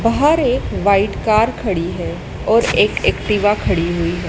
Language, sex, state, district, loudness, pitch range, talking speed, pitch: Hindi, male, Madhya Pradesh, Dhar, -16 LUFS, 175-220 Hz, 165 wpm, 205 Hz